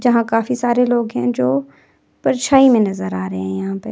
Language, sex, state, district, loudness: Hindi, female, Himachal Pradesh, Shimla, -17 LUFS